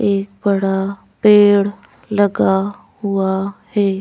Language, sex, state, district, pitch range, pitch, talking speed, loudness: Hindi, female, Madhya Pradesh, Bhopal, 195-205 Hz, 200 Hz, 90 wpm, -16 LUFS